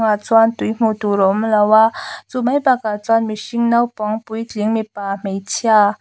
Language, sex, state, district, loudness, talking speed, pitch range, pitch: Mizo, female, Mizoram, Aizawl, -17 LUFS, 180 wpm, 210-225 Hz, 220 Hz